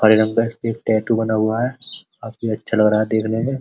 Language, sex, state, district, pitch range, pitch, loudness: Hindi, male, Uttar Pradesh, Muzaffarnagar, 110-115 Hz, 110 Hz, -19 LUFS